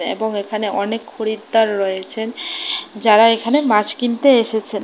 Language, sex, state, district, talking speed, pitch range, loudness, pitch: Bengali, female, Tripura, West Tripura, 125 wpm, 210-240 Hz, -17 LUFS, 220 Hz